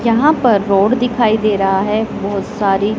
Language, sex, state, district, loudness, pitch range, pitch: Hindi, male, Punjab, Pathankot, -14 LUFS, 200-230 Hz, 215 Hz